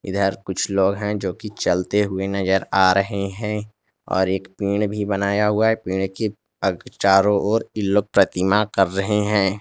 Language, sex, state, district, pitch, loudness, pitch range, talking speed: Hindi, male, Jharkhand, Garhwa, 100 Hz, -21 LUFS, 95-105 Hz, 175 wpm